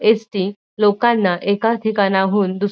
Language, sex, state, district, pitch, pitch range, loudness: Marathi, female, Maharashtra, Dhule, 205 Hz, 195-220 Hz, -17 LUFS